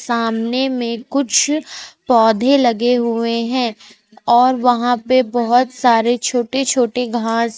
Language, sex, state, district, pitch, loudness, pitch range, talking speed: Hindi, female, Jharkhand, Ranchi, 240 Hz, -16 LUFS, 230-255 Hz, 120 wpm